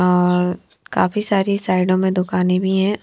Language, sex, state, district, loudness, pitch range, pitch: Hindi, female, Himachal Pradesh, Shimla, -18 LUFS, 180-195 Hz, 185 Hz